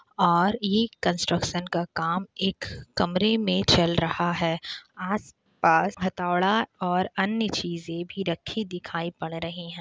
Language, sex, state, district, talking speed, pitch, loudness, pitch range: Hindi, female, Bihar, Kishanganj, 135 wpm, 180 Hz, -26 LUFS, 170-195 Hz